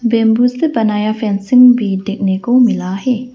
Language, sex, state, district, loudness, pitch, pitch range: Hindi, female, Arunachal Pradesh, Lower Dibang Valley, -13 LUFS, 225 Hz, 205-250 Hz